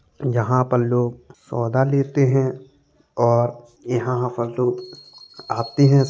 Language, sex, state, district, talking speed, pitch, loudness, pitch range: Hindi, male, Uttar Pradesh, Jalaun, 120 wpm, 125 Hz, -21 LUFS, 120-130 Hz